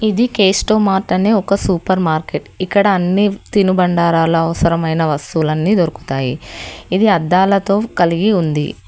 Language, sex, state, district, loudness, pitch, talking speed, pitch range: Telugu, female, Telangana, Hyderabad, -15 LUFS, 185 Hz, 115 wpm, 165-200 Hz